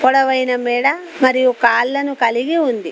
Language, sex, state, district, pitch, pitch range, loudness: Telugu, female, Telangana, Komaram Bheem, 260 Hz, 245-280 Hz, -16 LUFS